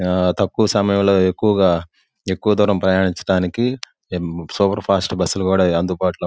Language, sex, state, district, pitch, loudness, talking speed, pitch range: Telugu, male, Andhra Pradesh, Guntur, 95 Hz, -18 LUFS, 145 wpm, 90-100 Hz